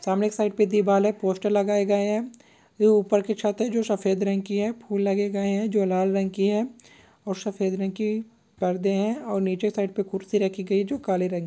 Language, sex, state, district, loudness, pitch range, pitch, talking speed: Hindi, male, Maharashtra, Chandrapur, -25 LUFS, 195-215 Hz, 205 Hz, 235 wpm